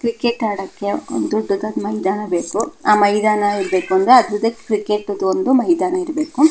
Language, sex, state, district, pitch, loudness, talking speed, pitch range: Kannada, female, Karnataka, Mysore, 210 Hz, -17 LUFS, 130 wpm, 200-240 Hz